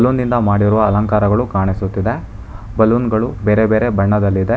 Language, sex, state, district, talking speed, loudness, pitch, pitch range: Kannada, male, Karnataka, Bangalore, 120 wpm, -15 LUFS, 105 Hz, 100-115 Hz